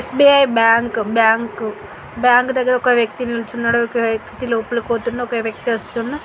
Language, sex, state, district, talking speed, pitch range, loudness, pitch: Telugu, female, Telangana, Karimnagar, 145 wpm, 230-245 Hz, -17 LUFS, 235 Hz